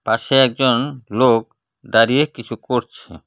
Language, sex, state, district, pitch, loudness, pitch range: Bengali, male, West Bengal, Cooch Behar, 125 Hz, -17 LUFS, 115-130 Hz